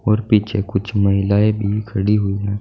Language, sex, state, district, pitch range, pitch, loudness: Hindi, male, Uttar Pradesh, Saharanpur, 100-105 Hz, 105 Hz, -18 LUFS